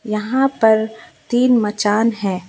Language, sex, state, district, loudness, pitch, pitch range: Hindi, female, West Bengal, Alipurduar, -17 LUFS, 220 Hz, 210-240 Hz